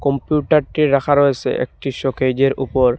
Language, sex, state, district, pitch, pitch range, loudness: Bengali, male, Assam, Hailakandi, 140 Hz, 135-145 Hz, -17 LUFS